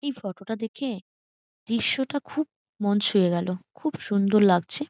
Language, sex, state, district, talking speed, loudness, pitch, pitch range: Bengali, female, West Bengal, Jhargram, 160 wpm, -25 LUFS, 215 Hz, 195-270 Hz